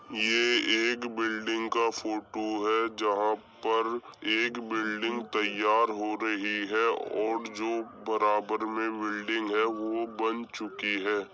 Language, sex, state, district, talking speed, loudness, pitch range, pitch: Hindi, male, Uttar Pradesh, Jyotiba Phule Nagar, 125 wpm, -29 LUFS, 105-115 Hz, 110 Hz